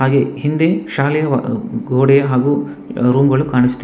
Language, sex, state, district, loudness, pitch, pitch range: Kannada, male, Karnataka, Bangalore, -15 LUFS, 140 Hz, 130-145 Hz